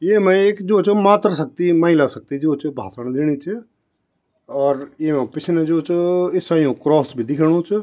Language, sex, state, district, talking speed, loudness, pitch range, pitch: Garhwali, male, Uttarakhand, Tehri Garhwal, 185 wpm, -18 LUFS, 145-185 Hz, 160 Hz